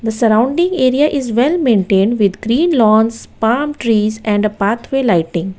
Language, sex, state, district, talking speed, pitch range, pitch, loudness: English, female, Gujarat, Valsad, 150 wpm, 210-260 Hz, 225 Hz, -14 LUFS